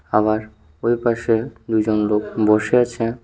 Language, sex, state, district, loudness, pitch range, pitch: Bengali, male, Tripura, West Tripura, -19 LUFS, 105-120 Hz, 110 Hz